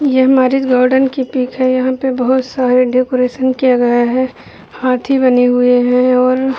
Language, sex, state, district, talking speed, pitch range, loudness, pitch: Hindi, female, Uttar Pradesh, Budaun, 175 wpm, 250-260 Hz, -13 LUFS, 255 Hz